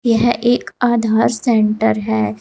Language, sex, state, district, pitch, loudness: Hindi, female, Uttar Pradesh, Saharanpur, 225 Hz, -16 LUFS